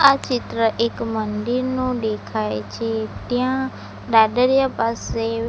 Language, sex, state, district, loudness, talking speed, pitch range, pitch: Gujarati, female, Gujarat, Valsad, -21 LUFS, 110 wpm, 220-255 Hz, 230 Hz